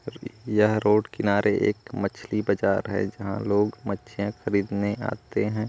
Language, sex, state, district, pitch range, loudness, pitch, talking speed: Hindi, male, Chhattisgarh, Kabirdham, 100-110 Hz, -25 LUFS, 105 Hz, 135 wpm